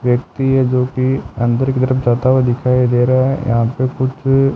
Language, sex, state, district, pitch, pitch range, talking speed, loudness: Hindi, male, Rajasthan, Bikaner, 130 Hz, 125-130 Hz, 210 wpm, -15 LUFS